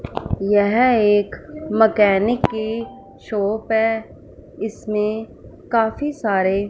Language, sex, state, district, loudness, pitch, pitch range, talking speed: Hindi, female, Punjab, Fazilka, -19 LUFS, 220 Hz, 205-225 Hz, 80 wpm